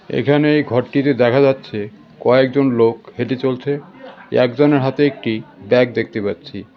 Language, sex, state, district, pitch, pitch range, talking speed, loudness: Bengali, male, West Bengal, Cooch Behar, 130 Hz, 120-145 Hz, 135 wpm, -17 LUFS